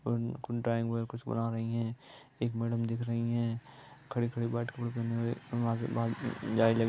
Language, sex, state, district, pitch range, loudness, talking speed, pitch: Hindi, male, Bihar, East Champaran, 115-120 Hz, -34 LUFS, 130 wpm, 115 Hz